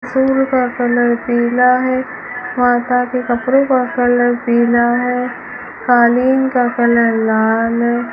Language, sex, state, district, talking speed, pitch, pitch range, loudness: Hindi, female, Rajasthan, Bikaner, 125 wpm, 245 Hz, 235-250 Hz, -14 LUFS